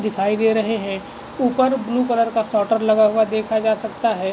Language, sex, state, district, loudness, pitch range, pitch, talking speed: Hindi, male, Maharashtra, Aurangabad, -19 LUFS, 215-230 Hz, 220 Hz, 210 wpm